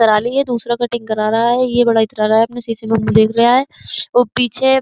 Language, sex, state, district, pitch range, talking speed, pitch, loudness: Hindi, female, Uttar Pradesh, Jyotiba Phule Nagar, 220-245 Hz, 275 wpm, 235 Hz, -15 LUFS